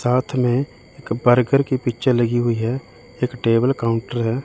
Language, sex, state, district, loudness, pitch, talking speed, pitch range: Hindi, male, Chandigarh, Chandigarh, -20 LUFS, 120 Hz, 175 wpm, 115-130 Hz